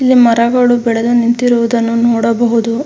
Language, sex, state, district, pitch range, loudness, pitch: Kannada, female, Karnataka, Mysore, 230-240 Hz, -11 LUFS, 235 Hz